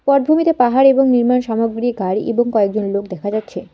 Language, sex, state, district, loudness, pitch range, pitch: Bengali, female, West Bengal, Alipurduar, -16 LUFS, 210-265 Hz, 240 Hz